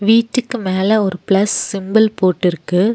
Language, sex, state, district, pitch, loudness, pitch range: Tamil, female, Tamil Nadu, Nilgiris, 200 Hz, -16 LUFS, 185-220 Hz